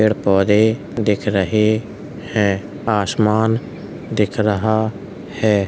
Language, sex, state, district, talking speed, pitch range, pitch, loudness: Hindi, male, Uttar Pradesh, Hamirpur, 95 wpm, 100-110 Hz, 105 Hz, -18 LUFS